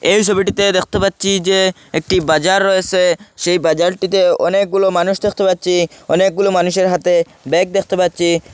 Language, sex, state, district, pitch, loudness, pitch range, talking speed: Bengali, male, Assam, Hailakandi, 185 Hz, -15 LUFS, 175-195 Hz, 140 wpm